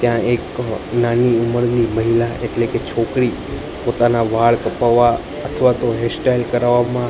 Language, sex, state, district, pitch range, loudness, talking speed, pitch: Gujarati, male, Gujarat, Gandhinagar, 115-120 Hz, -17 LUFS, 120 wpm, 120 Hz